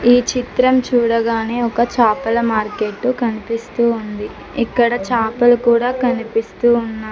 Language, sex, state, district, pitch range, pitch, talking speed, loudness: Telugu, female, Telangana, Mahabubabad, 225-245 Hz, 235 Hz, 110 wpm, -17 LUFS